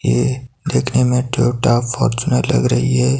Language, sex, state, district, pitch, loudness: Hindi, male, Himachal Pradesh, Shimla, 120 Hz, -17 LUFS